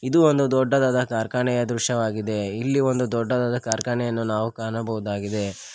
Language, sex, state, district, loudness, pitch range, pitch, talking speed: Kannada, male, Karnataka, Koppal, -23 LUFS, 110-125 Hz, 120 Hz, 115 wpm